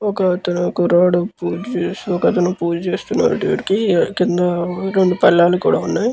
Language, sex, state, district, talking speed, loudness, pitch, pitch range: Telugu, male, Andhra Pradesh, Krishna, 145 wpm, -17 LUFS, 180 Hz, 175-185 Hz